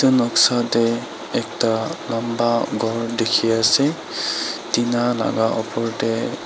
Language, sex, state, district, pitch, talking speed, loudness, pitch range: Nagamese, female, Nagaland, Dimapur, 115 Hz, 100 wpm, -20 LUFS, 115-120 Hz